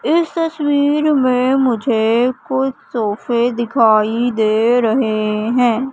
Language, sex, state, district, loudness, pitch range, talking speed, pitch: Hindi, female, Madhya Pradesh, Katni, -16 LUFS, 225-270 Hz, 100 wpm, 245 Hz